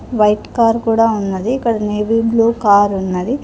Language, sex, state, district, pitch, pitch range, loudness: Telugu, female, Telangana, Hyderabad, 225 Hz, 205-230 Hz, -15 LUFS